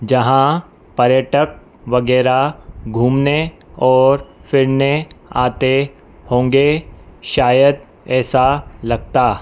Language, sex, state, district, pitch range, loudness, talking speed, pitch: Hindi, female, Madhya Pradesh, Dhar, 125-140 Hz, -15 LUFS, 70 wpm, 130 Hz